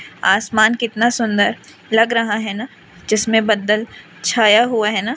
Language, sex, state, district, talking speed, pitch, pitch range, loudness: Hindi, female, Madhya Pradesh, Umaria, 150 wpm, 220 Hz, 210-230 Hz, -16 LUFS